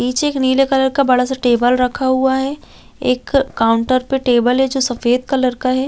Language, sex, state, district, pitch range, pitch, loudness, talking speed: Hindi, female, Chhattisgarh, Raigarh, 250-270 Hz, 255 Hz, -16 LUFS, 225 wpm